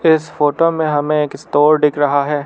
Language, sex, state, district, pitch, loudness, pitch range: Hindi, male, Arunachal Pradesh, Lower Dibang Valley, 150 Hz, -15 LUFS, 145-155 Hz